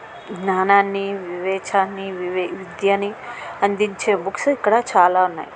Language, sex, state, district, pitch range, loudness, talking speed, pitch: Telugu, female, Andhra Pradesh, Krishna, 190-200 Hz, -20 LUFS, 85 wpm, 195 Hz